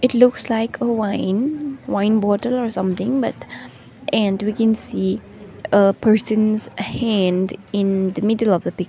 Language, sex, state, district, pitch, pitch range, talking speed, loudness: English, female, Sikkim, Gangtok, 215 Hz, 195-235 Hz, 155 wpm, -19 LUFS